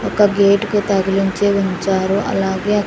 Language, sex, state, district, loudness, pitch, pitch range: Telugu, female, Andhra Pradesh, Sri Satya Sai, -16 LUFS, 200 Hz, 190-205 Hz